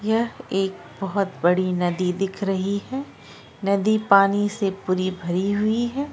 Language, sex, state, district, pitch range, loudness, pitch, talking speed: Hindi, female, Bihar, Araria, 190-215 Hz, -23 LUFS, 195 Hz, 155 wpm